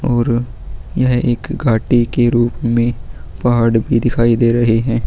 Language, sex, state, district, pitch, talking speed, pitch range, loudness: Hindi, male, Uttarakhand, Tehri Garhwal, 120 Hz, 155 wpm, 115-120 Hz, -15 LUFS